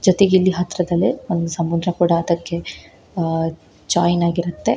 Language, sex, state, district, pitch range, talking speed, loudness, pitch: Kannada, female, Karnataka, Shimoga, 170-180 Hz, 125 wpm, -19 LUFS, 175 Hz